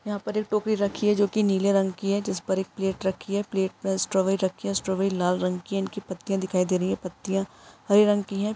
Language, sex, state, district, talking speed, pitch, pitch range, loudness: Hindi, female, Chhattisgarh, Raigarh, 265 wpm, 195 Hz, 190-205 Hz, -26 LUFS